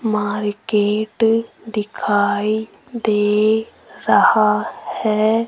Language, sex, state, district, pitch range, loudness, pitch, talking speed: Hindi, female, Rajasthan, Jaipur, 210-220 Hz, -18 LUFS, 215 Hz, 55 wpm